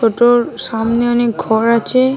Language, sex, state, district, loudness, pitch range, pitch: Bengali, female, Jharkhand, Jamtara, -14 LUFS, 230-240 Hz, 235 Hz